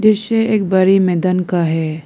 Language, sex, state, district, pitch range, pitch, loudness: Hindi, female, Arunachal Pradesh, Lower Dibang Valley, 175-215 Hz, 185 Hz, -15 LUFS